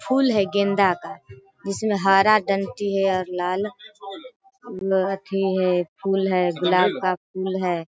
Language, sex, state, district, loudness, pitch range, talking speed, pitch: Hindi, female, Bihar, Sitamarhi, -22 LUFS, 185-200 Hz, 135 wpm, 195 Hz